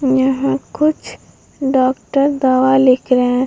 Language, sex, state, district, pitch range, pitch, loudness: Hindi, female, Bihar, Vaishali, 255-270 Hz, 260 Hz, -15 LUFS